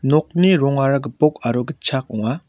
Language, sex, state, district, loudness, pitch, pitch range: Garo, male, Meghalaya, West Garo Hills, -18 LUFS, 140 Hz, 125-155 Hz